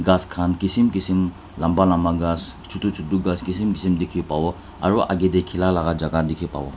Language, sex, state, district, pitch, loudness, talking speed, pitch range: Nagamese, male, Nagaland, Dimapur, 90 Hz, -22 LUFS, 195 wpm, 85-95 Hz